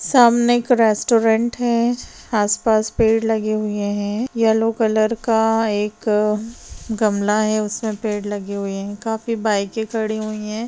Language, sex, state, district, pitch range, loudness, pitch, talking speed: Hindi, female, Bihar, East Champaran, 210-225 Hz, -19 LUFS, 220 Hz, 135 wpm